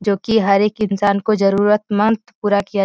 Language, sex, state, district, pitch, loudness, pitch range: Hindi, female, Bihar, Jahanabad, 205 Hz, -16 LUFS, 200-215 Hz